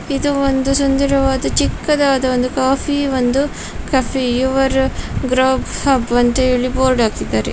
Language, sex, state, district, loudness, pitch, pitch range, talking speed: Kannada, female, Karnataka, Mysore, -16 LUFS, 265 Hz, 255-275 Hz, 125 wpm